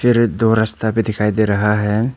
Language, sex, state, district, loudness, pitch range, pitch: Hindi, male, Arunachal Pradesh, Papum Pare, -16 LUFS, 105-115 Hz, 110 Hz